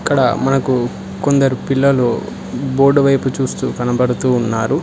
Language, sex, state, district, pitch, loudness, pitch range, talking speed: Telugu, male, Telangana, Hyderabad, 130 Hz, -16 LUFS, 125-135 Hz, 110 wpm